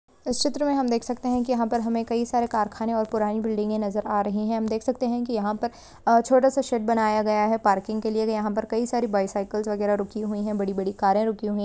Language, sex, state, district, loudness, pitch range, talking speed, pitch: Hindi, female, Maharashtra, Sindhudurg, -25 LUFS, 210-235 Hz, 255 wpm, 220 Hz